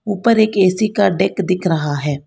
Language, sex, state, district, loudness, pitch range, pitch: Hindi, female, Karnataka, Bangalore, -16 LUFS, 160-215 Hz, 190 Hz